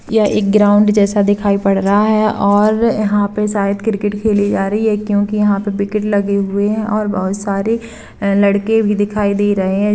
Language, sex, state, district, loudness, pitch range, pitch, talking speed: Hindi, female, Chhattisgarh, Kabirdham, -15 LUFS, 200-210 Hz, 205 Hz, 200 wpm